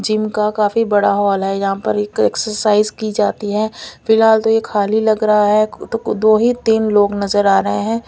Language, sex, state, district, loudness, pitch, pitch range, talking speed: Hindi, female, Delhi, New Delhi, -15 LUFS, 210 Hz, 205-220 Hz, 215 wpm